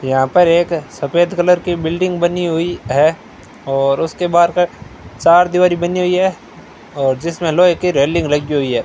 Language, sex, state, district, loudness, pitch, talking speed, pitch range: Hindi, male, Rajasthan, Bikaner, -15 LUFS, 170 Hz, 185 wpm, 150-180 Hz